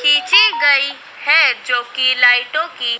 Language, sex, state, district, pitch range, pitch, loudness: Hindi, female, Madhya Pradesh, Dhar, 245-300 Hz, 255 Hz, -13 LUFS